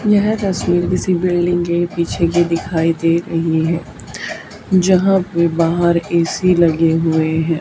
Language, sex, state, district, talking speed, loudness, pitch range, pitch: Hindi, female, Haryana, Charkhi Dadri, 140 wpm, -16 LUFS, 165-180 Hz, 170 Hz